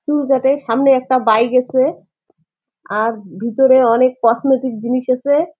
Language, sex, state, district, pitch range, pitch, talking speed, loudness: Bengali, female, West Bengal, Jalpaiguri, 230-270 Hz, 255 Hz, 120 wpm, -15 LUFS